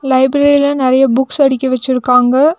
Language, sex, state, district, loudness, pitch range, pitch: Tamil, female, Tamil Nadu, Nilgiris, -11 LUFS, 255-285 Hz, 265 Hz